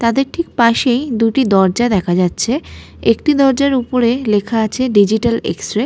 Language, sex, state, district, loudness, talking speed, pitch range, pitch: Bengali, female, West Bengal, Malda, -15 LUFS, 155 wpm, 215-260 Hz, 235 Hz